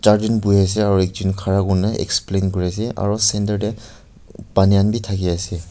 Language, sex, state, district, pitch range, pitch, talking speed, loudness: Nagamese, male, Nagaland, Kohima, 95-105 Hz, 100 Hz, 190 wpm, -18 LUFS